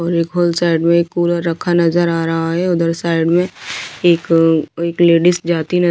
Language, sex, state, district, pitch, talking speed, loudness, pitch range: Hindi, female, Delhi, New Delhi, 170 Hz, 215 wpm, -15 LUFS, 165-175 Hz